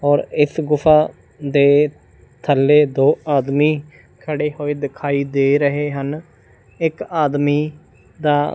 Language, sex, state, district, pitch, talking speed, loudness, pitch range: Punjabi, male, Punjab, Fazilka, 145 Hz, 110 wpm, -18 LUFS, 140-150 Hz